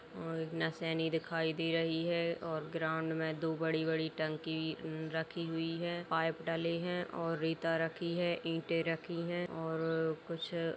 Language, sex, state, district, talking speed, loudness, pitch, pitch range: Hindi, female, Uttar Pradesh, Etah, 150 wpm, -36 LUFS, 165 Hz, 160-165 Hz